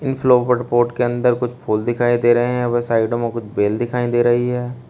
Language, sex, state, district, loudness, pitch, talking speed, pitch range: Hindi, male, Uttar Pradesh, Shamli, -18 LUFS, 120 Hz, 220 wpm, 120-125 Hz